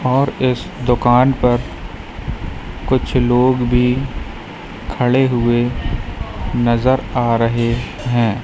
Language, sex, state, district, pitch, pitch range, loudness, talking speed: Hindi, female, Madhya Pradesh, Katni, 120 Hz, 120-125 Hz, -17 LUFS, 90 wpm